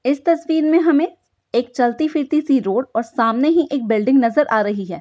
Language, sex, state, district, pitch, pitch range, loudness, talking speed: Hindi, female, Bihar, East Champaran, 270 Hz, 230-310 Hz, -18 LUFS, 215 wpm